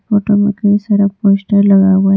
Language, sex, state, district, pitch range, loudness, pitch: Hindi, female, Jharkhand, Deoghar, 195-205 Hz, -12 LUFS, 200 Hz